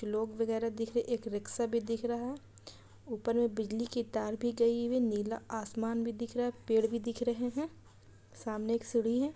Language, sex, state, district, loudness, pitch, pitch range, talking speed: Hindi, female, Bihar, Gaya, -34 LUFS, 230 Hz, 220-235 Hz, 230 wpm